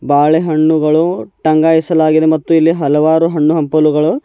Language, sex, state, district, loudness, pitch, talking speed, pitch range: Kannada, male, Karnataka, Bidar, -12 LUFS, 155 Hz, 115 wpm, 155-160 Hz